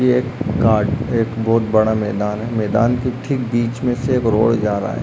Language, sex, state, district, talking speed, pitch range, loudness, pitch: Hindi, male, Uttarakhand, Uttarkashi, 225 wpm, 110-125 Hz, -18 LUFS, 115 Hz